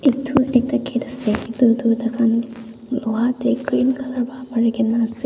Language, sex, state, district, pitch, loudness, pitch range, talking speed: Nagamese, female, Nagaland, Dimapur, 245 Hz, -20 LUFS, 230-255 Hz, 170 wpm